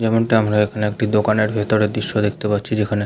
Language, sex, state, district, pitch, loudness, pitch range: Bengali, male, West Bengal, Jhargram, 105 Hz, -18 LUFS, 105-110 Hz